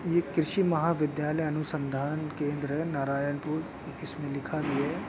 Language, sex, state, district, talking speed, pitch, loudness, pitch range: Hindi, male, Chhattisgarh, Bastar, 130 wpm, 150 Hz, -30 LUFS, 145-160 Hz